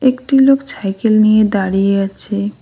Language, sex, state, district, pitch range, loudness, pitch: Bengali, female, West Bengal, Cooch Behar, 195-260 Hz, -14 LUFS, 215 Hz